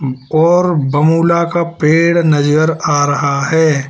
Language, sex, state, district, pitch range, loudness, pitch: Hindi, male, Uttar Pradesh, Lalitpur, 145-170 Hz, -12 LUFS, 155 Hz